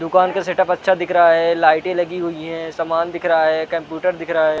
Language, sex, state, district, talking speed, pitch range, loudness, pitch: Hindi, male, Chhattisgarh, Rajnandgaon, 260 wpm, 165-180 Hz, -18 LUFS, 170 Hz